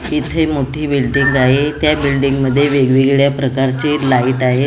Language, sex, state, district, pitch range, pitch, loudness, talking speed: Marathi, female, Maharashtra, Gondia, 130-145 Hz, 140 Hz, -14 LUFS, 140 wpm